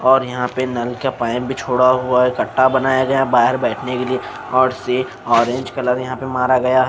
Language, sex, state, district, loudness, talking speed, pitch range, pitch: Hindi, male, Maharashtra, Mumbai Suburban, -17 LUFS, 215 wpm, 125-130 Hz, 130 Hz